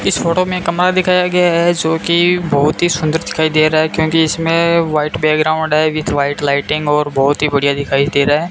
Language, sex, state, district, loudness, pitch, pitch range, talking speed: Hindi, male, Rajasthan, Bikaner, -14 LUFS, 155 Hz, 150-170 Hz, 220 wpm